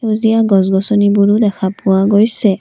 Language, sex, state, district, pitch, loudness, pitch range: Assamese, female, Assam, Kamrup Metropolitan, 205 Hz, -12 LUFS, 195-220 Hz